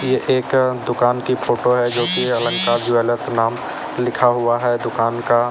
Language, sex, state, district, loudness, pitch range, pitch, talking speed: Hindi, male, Uttar Pradesh, Lalitpur, -18 LUFS, 120-125 Hz, 120 Hz, 175 wpm